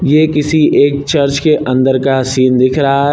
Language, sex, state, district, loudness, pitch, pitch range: Hindi, male, Uttar Pradesh, Lucknow, -11 LUFS, 140 Hz, 130-150 Hz